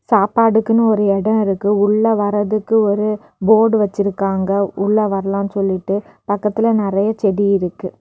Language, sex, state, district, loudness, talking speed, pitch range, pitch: Tamil, female, Tamil Nadu, Kanyakumari, -16 LUFS, 120 wpm, 200-220 Hz, 205 Hz